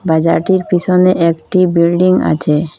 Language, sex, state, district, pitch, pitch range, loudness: Bengali, female, Assam, Hailakandi, 175 Hz, 165-185 Hz, -12 LUFS